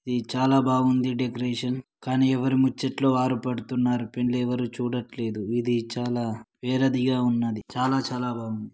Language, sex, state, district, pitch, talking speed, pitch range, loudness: Telugu, male, Telangana, Karimnagar, 125 Hz, 130 wpm, 120-130 Hz, -25 LUFS